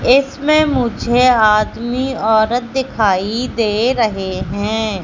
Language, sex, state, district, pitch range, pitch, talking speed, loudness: Hindi, female, Madhya Pradesh, Katni, 215-255 Hz, 235 Hz, 95 wpm, -15 LUFS